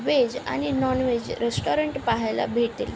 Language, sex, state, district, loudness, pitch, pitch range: Marathi, female, Maharashtra, Aurangabad, -25 LUFS, 255 Hz, 235-280 Hz